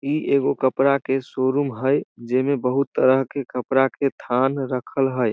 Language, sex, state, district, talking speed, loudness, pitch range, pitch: Maithili, male, Bihar, Samastipur, 180 wpm, -21 LUFS, 130-140 Hz, 135 Hz